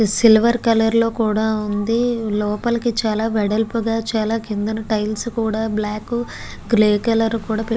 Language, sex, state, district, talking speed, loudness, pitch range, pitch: Telugu, female, Andhra Pradesh, Guntur, 140 wpm, -19 LUFS, 215-230 Hz, 220 Hz